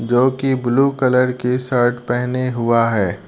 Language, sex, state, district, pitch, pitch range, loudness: Hindi, male, Uttar Pradesh, Deoria, 125 Hz, 120-130 Hz, -17 LUFS